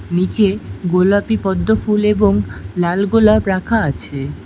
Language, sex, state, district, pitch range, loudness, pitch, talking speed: Bengali, female, West Bengal, Alipurduar, 175-210 Hz, -16 LUFS, 195 Hz, 120 wpm